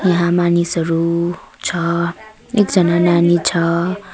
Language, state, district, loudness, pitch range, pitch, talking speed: Nepali, West Bengal, Darjeeling, -16 LUFS, 170-180 Hz, 175 Hz, 85 wpm